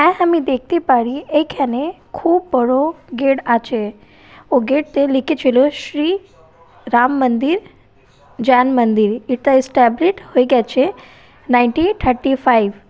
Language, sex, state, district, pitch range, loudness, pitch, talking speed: Bengali, female, West Bengal, Purulia, 250-305 Hz, -16 LUFS, 265 Hz, 115 wpm